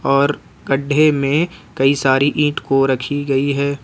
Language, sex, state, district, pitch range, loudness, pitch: Hindi, male, Jharkhand, Ranchi, 135-145 Hz, -17 LUFS, 140 Hz